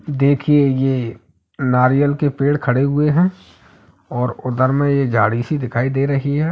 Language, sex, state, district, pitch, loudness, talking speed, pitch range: Hindi, male, Uttar Pradesh, Etah, 135 Hz, -17 LUFS, 165 wpm, 120-145 Hz